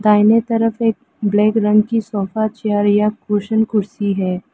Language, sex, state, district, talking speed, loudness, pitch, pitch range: Hindi, female, Arunachal Pradesh, Lower Dibang Valley, 160 wpm, -17 LUFS, 210 Hz, 205-220 Hz